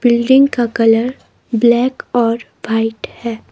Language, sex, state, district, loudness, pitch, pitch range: Hindi, female, Himachal Pradesh, Shimla, -15 LUFS, 235 Hz, 230-245 Hz